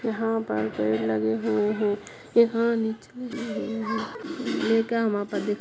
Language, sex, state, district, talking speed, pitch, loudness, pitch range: Kumaoni, female, Uttarakhand, Uttarkashi, 95 wpm, 220 Hz, -26 LUFS, 200-225 Hz